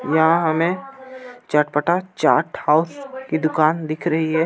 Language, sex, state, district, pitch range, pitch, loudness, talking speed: Hindi, male, Jharkhand, Ranchi, 155-185 Hz, 160 Hz, -19 LUFS, 150 wpm